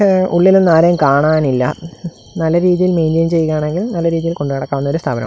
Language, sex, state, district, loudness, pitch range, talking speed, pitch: Malayalam, male, Kerala, Kasaragod, -14 LUFS, 145-175 Hz, 160 wpm, 165 Hz